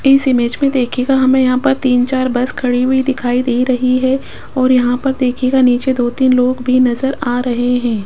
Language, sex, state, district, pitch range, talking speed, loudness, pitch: Hindi, female, Rajasthan, Jaipur, 245-265 Hz, 215 wpm, -14 LUFS, 255 Hz